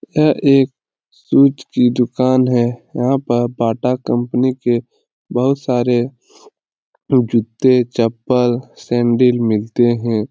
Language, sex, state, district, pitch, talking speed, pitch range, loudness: Hindi, male, Bihar, Lakhisarai, 125 Hz, 110 wpm, 120-130 Hz, -16 LUFS